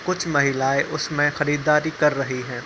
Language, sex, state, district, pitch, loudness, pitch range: Hindi, male, Uttar Pradesh, Muzaffarnagar, 145 Hz, -21 LUFS, 140-155 Hz